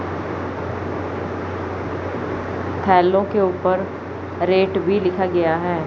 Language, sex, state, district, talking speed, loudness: Hindi, female, Chandigarh, Chandigarh, 80 wpm, -21 LUFS